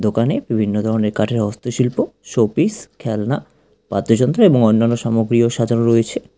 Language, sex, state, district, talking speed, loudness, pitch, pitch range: Bengali, male, West Bengal, Cooch Behar, 130 wpm, -17 LUFS, 115 Hz, 110-120 Hz